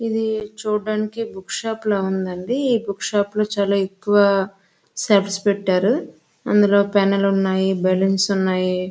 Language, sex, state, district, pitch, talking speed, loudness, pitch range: Telugu, female, Andhra Pradesh, Srikakulam, 200 Hz, 120 wpm, -20 LUFS, 190-215 Hz